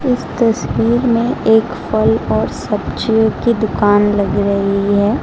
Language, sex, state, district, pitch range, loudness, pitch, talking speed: Hindi, female, Gujarat, Valsad, 205-235 Hz, -15 LUFS, 220 Hz, 135 wpm